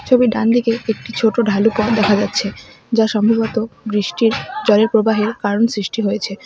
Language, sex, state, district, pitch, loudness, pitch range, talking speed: Bengali, female, West Bengal, Alipurduar, 220 Hz, -16 LUFS, 210-230 Hz, 160 wpm